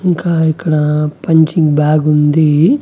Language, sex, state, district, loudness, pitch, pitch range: Telugu, male, Andhra Pradesh, Annamaya, -12 LUFS, 155 Hz, 150-165 Hz